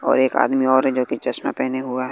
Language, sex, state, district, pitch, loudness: Hindi, male, Bihar, West Champaran, 130 Hz, -20 LUFS